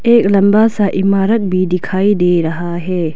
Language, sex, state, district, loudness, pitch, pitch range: Hindi, female, Arunachal Pradesh, Lower Dibang Valley, -13 LUFS, 190 Hz, 180-205 Hz